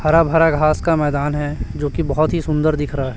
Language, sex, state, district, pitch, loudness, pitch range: Hindi, male, Chhattisgarh, Raipur, 155 Hz, -18 LUFS, 145-160 Hz